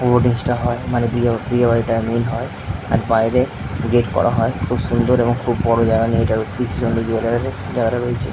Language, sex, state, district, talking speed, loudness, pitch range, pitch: Bengali, male, West Bengal, Jhargram, 150 wpm, -18 LUFS, 115-120 Hz, 120 Hz